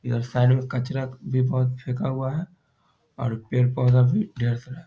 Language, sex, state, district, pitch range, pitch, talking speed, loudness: Hindi, male, Bihar, Muzaffarpur, 125-135 Hz, 125 Hz, 185 wpm, -24 LUFS